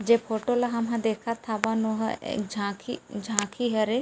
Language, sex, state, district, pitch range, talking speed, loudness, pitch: Chhattisgarhi, female, Chhattisgarh, Rajnandgaon, 215-235 Hz, 195 wpm, -28 LUFS, 225 Hz